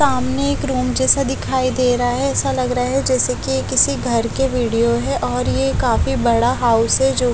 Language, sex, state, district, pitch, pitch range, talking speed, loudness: Hindi, female, Haryana, Charkhi Dadri, 250 Hz, 230-260 Hz, 220 wpm, -17 LUFS